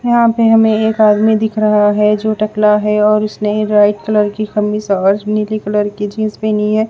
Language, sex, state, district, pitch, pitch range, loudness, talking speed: Hindi, female, Bihar, West Champaran, 215 Hz, 210-215 Hz, -13 LUFS, 210 wpm